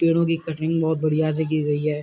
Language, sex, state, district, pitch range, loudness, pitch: Hindi, male, Uttar Pradesh, Muzaffarnagar, 155-165 Hz, -22 LUFS, 160 Hz